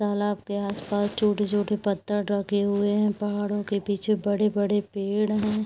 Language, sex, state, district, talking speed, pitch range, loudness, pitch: Hindi, female, Chhattisgarh, Raigarh, 150 wpm, 205-210 Hz, -26 LUFS, 205 Hz